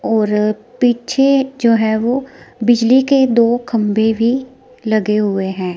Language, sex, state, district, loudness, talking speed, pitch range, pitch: Hindi, female, Himachal Pradesh, Shimla, -15 LUFS, 135 wpm, 215-255 Hz, 235 Hz